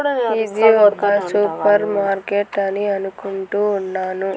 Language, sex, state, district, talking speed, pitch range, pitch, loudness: Telugu, female, Andhra Pradesh, Annamaya, 95 wpm, 195-205 Hz, 205 Hz, -18 LUFS